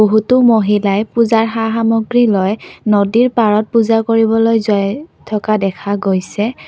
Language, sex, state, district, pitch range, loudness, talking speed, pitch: Assamese, female, Assam, Kamrup Metropolitan, 205-225 Hz, -14 LUFS, 125 wpm, 220 Hz